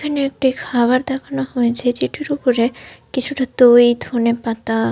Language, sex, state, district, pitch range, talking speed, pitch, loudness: Bengali, female, Jharkhand, Sahebganj, 240-270 Hz, 120 wpm, 250 Hz, -17 LUFS